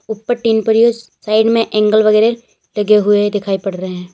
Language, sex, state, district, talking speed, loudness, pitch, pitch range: Hindi, female, Uttar Pradesh, Lalitpur, 220 wpm, -14 LUFS, 215 Hz, 205-225 Hz